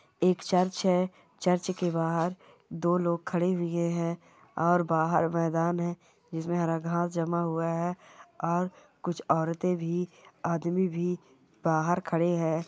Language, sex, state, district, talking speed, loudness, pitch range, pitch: Hindi, female, Bihar, Bhagalpur, 140 wpm, -29 LUFS, 165-180 Hz, 170 Hz